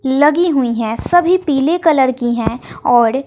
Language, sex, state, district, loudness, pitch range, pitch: Hindi, female, Bihar, West Champaran, -14 LUFS, 240-320 Hz, 270 Hz